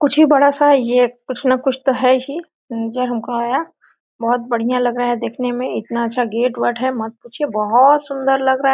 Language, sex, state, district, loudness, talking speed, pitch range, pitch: Hindi, female, Jharkhand, Sahebganj, -17 LUFS, 225 wpm, 240-270 Hz, 250 Hz